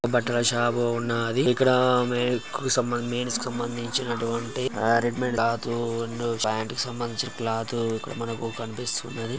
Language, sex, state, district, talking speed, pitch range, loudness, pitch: Telugu, male, Telangana, Karimnagar, 145 wpm, 115-125 Hz, -26 LUFS, 120 Hz